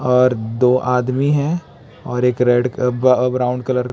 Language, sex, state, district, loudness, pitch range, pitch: Hindi, male, Chhattisgarh, Raipur, -17 LUFS, 125-130 Hz, 125 Hz